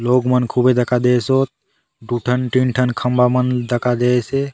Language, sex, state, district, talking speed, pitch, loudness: Halbi, male, Chhattisgarh, Bastar, 185 wpm, 125 Hz, -17 LUFS